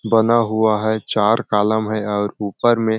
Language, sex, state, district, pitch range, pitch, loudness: Hindi, male, Chhattisgarh, Sarguja, 105-115 Hz, 110 Hz, -18 LUFS